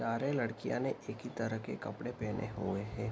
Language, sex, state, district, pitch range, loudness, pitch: Hindi, male, Bihar, Araria, 105-120 Hz, -38 LUFS, 115 Hz